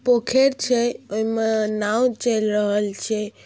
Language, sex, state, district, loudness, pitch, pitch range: Maithili, female, Bihar, Darbhanga, -21 LUFS, 220 Hz, 210-245 Hz